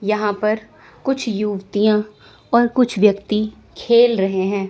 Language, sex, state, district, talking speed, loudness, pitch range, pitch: Hindi, female, Chandigarh, Chandigarh, 130 wpm, -18 LUFS, 200-230 Hz, 215 Hz